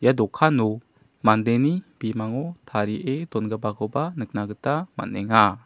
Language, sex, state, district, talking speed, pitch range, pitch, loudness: Garo, male, Meghalaya, South Garo Hills, 95 wpm, 110-140 Hz, 115 Hz, -24 LUFS